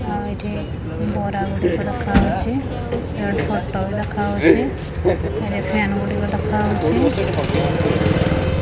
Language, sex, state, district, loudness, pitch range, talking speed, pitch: Odia, male, Odisha, Khordha, -20 LUFS, 95-105 Hz, 95 wpm, 100 Hz